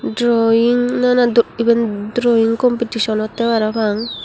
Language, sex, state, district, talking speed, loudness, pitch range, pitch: Chakma, female, Tripura, Unakoti, 115 wpm, -16 LUFS, 225-240 Hz, 230 Hz